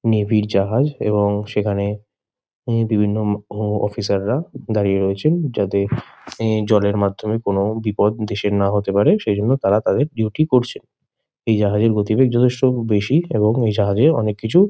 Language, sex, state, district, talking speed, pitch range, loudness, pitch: Bengali, male, West Bengal, Kolkata, 160 wpm, 105-120 Hz, -18 LUFS, 105 Hz